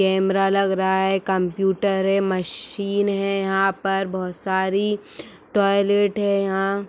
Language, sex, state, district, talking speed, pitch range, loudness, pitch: Hindi, female, Uttar Pradesh, Etah, 130 wpm, 190-200 Hz, -21 LUFS, 195 Hz